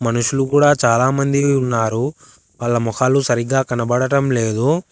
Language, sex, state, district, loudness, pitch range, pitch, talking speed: Telugu, male, Telangana, Hyderabad, -17 LUFS, 120-140 Hz, 130 Hz, 110 wpm